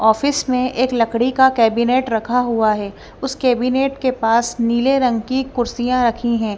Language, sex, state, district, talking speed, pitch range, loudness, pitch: Hindi, female, Punjab, Kapurthala, 175 wpm, 230-255 Hz, -17 LUFS, 245 Hz